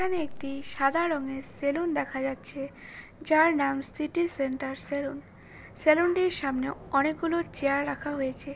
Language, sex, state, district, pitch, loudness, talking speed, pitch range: Bengali, female, West Bengal, Paschim Medinipur, 280 Hz, -28 LUFS, 140 wpm, 275-320 Hz